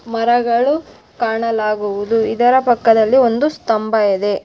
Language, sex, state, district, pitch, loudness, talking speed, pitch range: Kannada, female, Karnataka, Bellary, 230 Hz, -15 LUFS, 110 wpm, 220-240 Hz